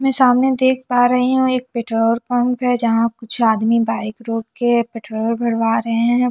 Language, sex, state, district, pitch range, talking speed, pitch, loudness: Hindi, female, Chhattisgarh, Jashpur, 230-250 Hz, 190 wpm, 235 Hz, -17 LUFS